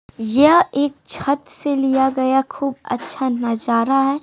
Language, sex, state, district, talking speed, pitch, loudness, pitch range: Hindi, female, Bihar, West Champaran, 140 wpm, 270 Hz, -18 LUFS, 260-280 Hz